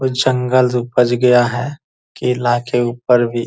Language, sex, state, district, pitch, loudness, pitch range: Hindi, male, Bihar, Purnia, 125 Hz, -16 LUFS, 120-125 Hz